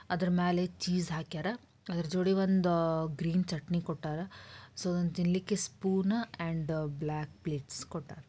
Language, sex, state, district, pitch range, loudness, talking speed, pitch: Kannada, female, Karnataka, Dharwad, 160-180 Hz, -33 LUFS, 125 wpm, 170 Hz